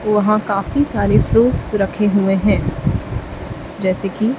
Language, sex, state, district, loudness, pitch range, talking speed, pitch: Hindi, female, Chhattisgarh, Raipur, -17 LUFS, 195-215 Hz, 125 wpm, 210 Hz